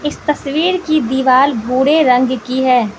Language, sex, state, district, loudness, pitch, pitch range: Hindi, female, Manipur, Imphal West, -14 LUFS, 265 Hz, 255-300 Hz